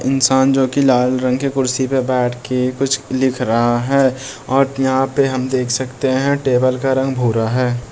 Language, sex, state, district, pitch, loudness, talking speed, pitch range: Hindi, male, Bihar, Bhagalpur, 130 Hz, -16 LUFS, 190 wpm, 125-135 Hz